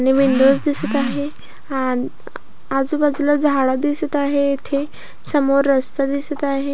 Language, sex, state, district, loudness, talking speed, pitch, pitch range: Marathi, female, Maharashtra, Pune, -18 LUFS, 125 wpm, 280 Hz, 270-290 Hz